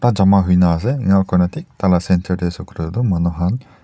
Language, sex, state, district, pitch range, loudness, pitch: Nagamese, male, Nagaland, Dimapur, 90-100 Hz, -17 LUFS, 90 Hz